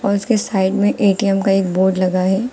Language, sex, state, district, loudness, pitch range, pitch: Hindi, female, Uttar Pradesh, Lucknow, -16 LUFS, 190-205 Hz, 195 Hz